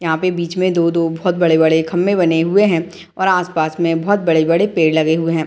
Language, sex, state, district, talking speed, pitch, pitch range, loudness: Hindi, female, Bihar, Madhepura, 220 wpm, 170 Hz, 160-180 Hz, -15 LUFS